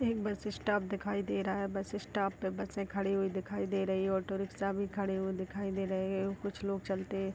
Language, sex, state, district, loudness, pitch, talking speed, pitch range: Hindi, female, Uttar Pradesh, Gorakhpur, -36 LUFS, 195 Hz, 235 wpm, 195-200 Hz